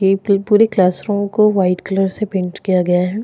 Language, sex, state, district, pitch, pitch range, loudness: Hindi, female, Goa, North and South Goa, 195 Hz, 185-205 Hz, -16 LUFS